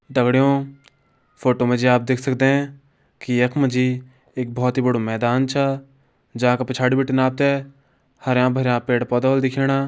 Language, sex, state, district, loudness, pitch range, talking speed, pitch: Hindi, male, Uttarakhand, Tehri Garhwal, -20 LUFS, 125-135 Hz, 170 wpm, 130 Hz